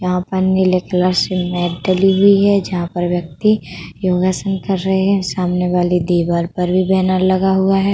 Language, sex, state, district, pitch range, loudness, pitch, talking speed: Hindi, female, Uttar Pradesh, Budaun, 180-190 Hz, -16 LUFS, 185 Hz, 180 wpm